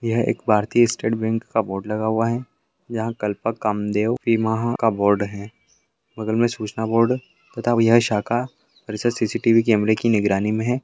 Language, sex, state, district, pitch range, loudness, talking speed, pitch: Hindi, male, Chhattisgarh, Jashpur, 105-115 Hz, -21 LUFS, 190 wpm, 110 Hz